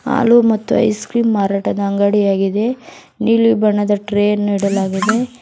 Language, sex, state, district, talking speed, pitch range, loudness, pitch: Kannada, female, Karnataka, Bangalore, 135 wpm, 200-230 Hz, -15 LUFS, 210 Hz